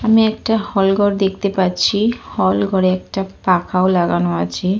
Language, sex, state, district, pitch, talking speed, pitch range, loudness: Bengali, female, Jharkhand, Jamtara, 190 Hz, 150 wpm, 180-205 Hz, -17 LUFS